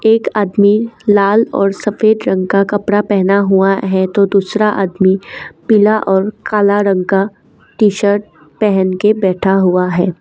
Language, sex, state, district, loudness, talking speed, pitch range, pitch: Hindi, female, Assam, Kamrup Metropolitan, -13 LUFS, 145 wpm, 190-210 Hz, 200 Hz